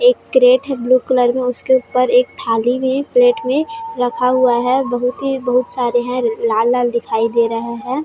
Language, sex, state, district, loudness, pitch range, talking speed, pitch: Chhattisgarhi, female, Chhattisgarh, Raigarh, -16 LUFS, 240-260 Hz, 195 wpm, 250 Hz